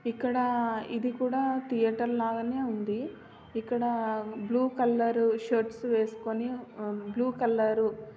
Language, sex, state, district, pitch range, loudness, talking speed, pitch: Telugu, female, Andhra Pradesh, Guntur, 225-245 Hz, -30 LUFS, 105 wpm, 230 Hz